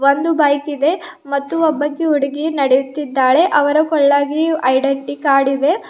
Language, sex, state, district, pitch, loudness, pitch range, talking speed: Kannada, female, Karnataka, Bidar, 285 Hz, -15 LUFS, 275-310 Hz, 110 wpm